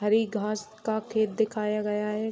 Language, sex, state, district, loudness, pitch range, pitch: Hindi, female, Bihar, Saharsa, -28 LUFS, 210-220 Hz, 215 Hz